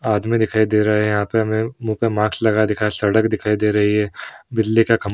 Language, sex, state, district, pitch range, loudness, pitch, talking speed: Hindi, male, Bihar, Gaya, 105-110 Hz, -18 LUFS, 110 Hz, 255 wpm